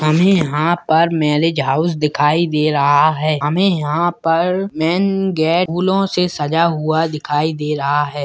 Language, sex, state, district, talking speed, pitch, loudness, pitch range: Hindi, male, Bihar, Purnia, 160 wpm, 160 Hz, -16 LUFS, 150-175 Hz